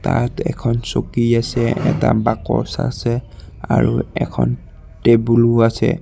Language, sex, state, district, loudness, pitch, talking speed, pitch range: Assamese, male, Assam, Sonitpur, -17 LUFS, 115 Hz, 120 wpm, 115-120 Hz